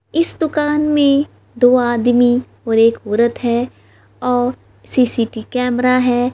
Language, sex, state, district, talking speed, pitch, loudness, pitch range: Hindi, female, Haryana, Rohtak, 125 wpm, 245 Hz, -16 LUFS, 235-260 Hz